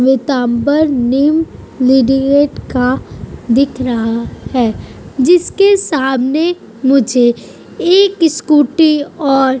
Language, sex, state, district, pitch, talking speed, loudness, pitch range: Hindi, female, Uttar Pradesh, Budaun, 270 Hz, 75 wpm, -12 LUFS, 255-310 Hz